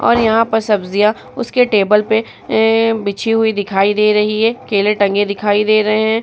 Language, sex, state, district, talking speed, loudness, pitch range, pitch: Hindi, female, Bihar, Vaishali, 200 wpm, -14 LUFS, 205-225 Hz, 215 Hz